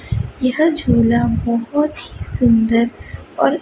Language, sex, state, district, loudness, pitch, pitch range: Hindi, female, Chhattisgarh, Raipur, -17 LUFS, 235 Hz, 230-290 Hz